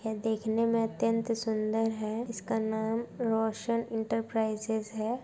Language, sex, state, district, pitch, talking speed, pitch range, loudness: Hindi, female, Bihar, Darbhanga, 225 Hz, 125 wpm, 220-230 Hz, -31 LUFS